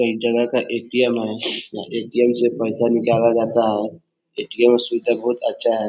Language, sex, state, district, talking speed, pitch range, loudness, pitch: Hindi, male, Bihar, East Champaran, 185 wpm, 115-120 Hz, -19 LUFS, 120 Hz